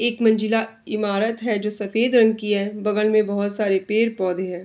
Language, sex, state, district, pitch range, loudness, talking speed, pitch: Hindi, female, Bihar, Araria, 205-225 Hz, -21 LUFS, 195 wpm, 215 Hz